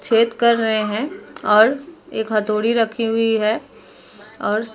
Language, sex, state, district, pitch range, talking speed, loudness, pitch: Hindi, female, Uttar Pradesh, Muzaffarnagar, 215-235 Hz, 150 wpm, -19 LUFS, 225 Hz